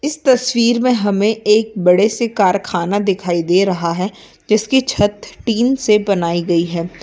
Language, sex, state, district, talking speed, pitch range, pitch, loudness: Hindi, male, Bihar, Samastipur, 160 wpm, 180-235 Hz, 205 Hz, -15 LUFS